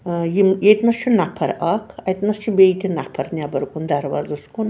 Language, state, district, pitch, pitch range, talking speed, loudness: Kashmiri, Punjab, Kapurthala, 185 Hz, 155-210 Hz, 155 wpm, -19 LUFS